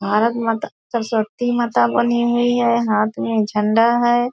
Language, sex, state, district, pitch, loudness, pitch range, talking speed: Hindi, female, Bihar, Purnia, 230 Hz, -18 LUFS, 210-240 Hz, 155 wpm